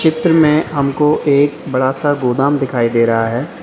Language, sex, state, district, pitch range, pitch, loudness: Hindi, male, Uttar Pradesh, Lalitpur, 125-150 Hz, 140 Hz, -14 LUFS